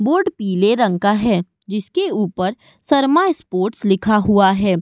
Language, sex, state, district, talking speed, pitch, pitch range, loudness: Hindi, female, Uttar Pradesh, Budaun, 150 wpm, 205 Hz, 190-245 Hz, -17 LUFS